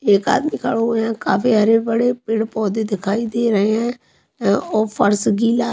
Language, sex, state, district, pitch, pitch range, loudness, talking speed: Hindi, female, Maharashtra, Mumbai Suburban, 225 Hz, 210-235 Hz, -18 LUFS, 200 wpm